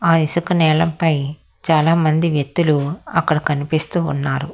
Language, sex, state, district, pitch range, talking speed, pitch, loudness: Telugu, female, Telangana, Hyderabad, 150-165 Hz, 120 wpm, 160 Hz, -18 LUFS